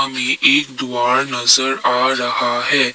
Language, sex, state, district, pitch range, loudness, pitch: Hindi, male, Assam, Kamrup Metropolitan, 120-135 Hz, -15 LUFS, 130 Hz